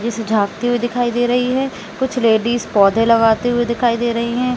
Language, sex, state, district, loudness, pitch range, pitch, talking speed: Hindi, female, Jharkhand, Jamtara, -16 LUFS, 225-245 Hz, 235 Hz, 210 wpm